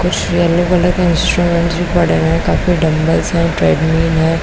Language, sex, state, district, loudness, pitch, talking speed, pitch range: Hindi, female, Bihar, Kishanganj, -13 LUFS, 170 Hz, 190 wpm, 160-175 Hz